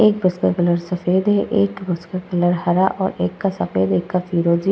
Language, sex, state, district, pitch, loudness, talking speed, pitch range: Hindi, female, Uttar Pradesh, Muzaffarnagar, 180 Hz, -19 LUFS, 255 wpm, 175-195 Hz